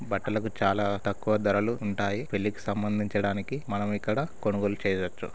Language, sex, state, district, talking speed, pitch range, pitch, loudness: Telugu, male, Telangana, Karimnagar, 125 wpm, 100-105 Hz, 100 Hz, -29 LUFS